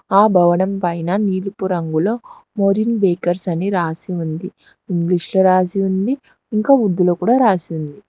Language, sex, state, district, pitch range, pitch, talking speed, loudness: Telugu, female, Telangana, Hyderabad, 175-205 Hz, 190 Hz, 140 wpm, -17 LUFS